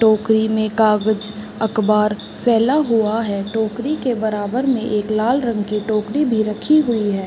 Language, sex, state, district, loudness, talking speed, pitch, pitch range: Hindi, female, Uttar Pradesh, Varanasi, -18 LUFS, 165 wpm, 220 Hz, 215-235 Hz